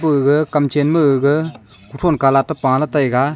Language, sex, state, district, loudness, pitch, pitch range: Wancho, male, Arunachal Pradesh, Longding, -16 LUFS, 145 Hz, 135-155 Hz